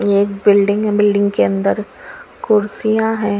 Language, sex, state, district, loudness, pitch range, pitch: Hindi, female, Haryana, Charkhi Dadri, -15 LUFS, 200-210 Hz, 205 Hz